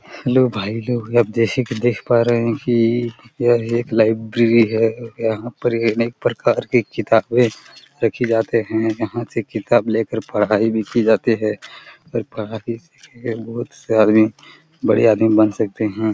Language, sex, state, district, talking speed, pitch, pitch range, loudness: Hindi, male, Chhattisgarh, Korba, 165 wpm, 115 Hz, 110-120 Hz, -18 LUFS